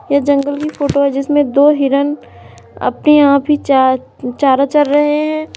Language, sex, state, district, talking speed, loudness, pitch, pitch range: Hindi, female, Uttar Pradesh, Lalitpur, 170 wpm, -13 LUFS, 285 Hz, 275-295 Hz